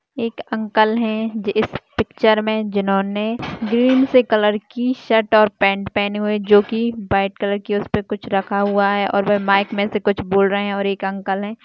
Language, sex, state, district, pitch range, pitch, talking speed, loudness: Hindi, female, Chhattisgarh, Jashpur, 200-220 Hz, 210 Hz, 200 wpm, -18 LUFS